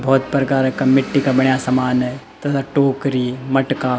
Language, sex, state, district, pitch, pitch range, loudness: Garhwali, male, Uttarakhand, Tehri Garhwal, 135 Hz, 130-135 Hz, -17 LUFS